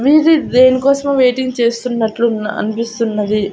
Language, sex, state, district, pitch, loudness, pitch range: Telugu, female, Andhra Pradesh, Annamaya, 235 Hz, -14 LUFS, 225-260 Hz